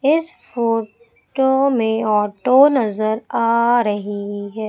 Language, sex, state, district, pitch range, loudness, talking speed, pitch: Hindi, female, Madhya Pradesh, Umaria, 215-265 Hz, -18 LUFS, 115 wpm, 230 Hz